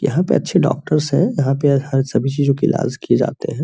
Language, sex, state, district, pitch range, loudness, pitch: Hindi, male, Bihar, Araria, 135-150 Hz, -17 LUFS, 140 Hz